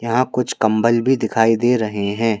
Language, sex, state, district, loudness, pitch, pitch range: Hindi, male, Madhya Pradesh, Bhopal, -17 LUFS, 115 Hz, 110-120 Hz